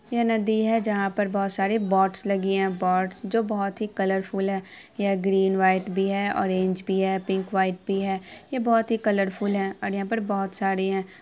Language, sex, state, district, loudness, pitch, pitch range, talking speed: Hindi, female, Bihar, Araria, -25 LUFS, 195 Hz, 190-210 Hz, 230 wpm